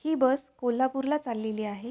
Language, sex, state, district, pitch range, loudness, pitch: Marathi, female, Maharashtra, Pune, 230-270 Hz, -29 LUFS, 260 Hz